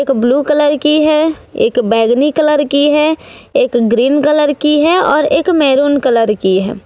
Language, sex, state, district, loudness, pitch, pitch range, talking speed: Hindi, female, Jharkhand, Deoghar, -12 LUFS, 290 Hz, 250-305 Hz, 185 wpm